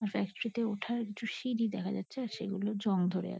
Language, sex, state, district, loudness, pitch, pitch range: Bengali, female, West Bengal, Kolkata, -35 LUFS, 210 Hz, 195-230 Hz